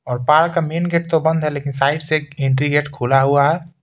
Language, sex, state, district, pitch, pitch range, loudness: Hindi, male, Bihar, Patna, 150 Hz, 140-160 Hz, -17 LUFS